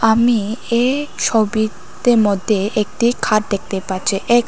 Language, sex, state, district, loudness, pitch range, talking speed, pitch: Bengali, female, Tripura, West Tripura, -17 LUFS, 200-235 Hz, 120 wpm, 215 Hz